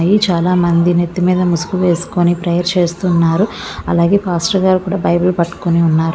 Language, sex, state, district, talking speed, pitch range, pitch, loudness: Telugu, female, Andhra Pradesh, Visakhapatnam, 275 wpm, 170-185 Hz, 175 Hz, -14 LUFS